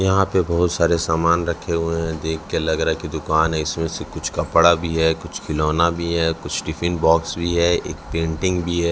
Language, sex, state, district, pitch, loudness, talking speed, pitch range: Hindi, male, Chhattisgarh, Raipur, 85 Hz, -20 LUFS, 235 wpm, 80-85 Hz